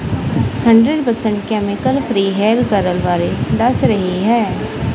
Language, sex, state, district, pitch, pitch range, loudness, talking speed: Punjabi, female, Punjab, Kapurthala, 210 Hz, 190-230 Hz, -15 LUFS, 120 wpm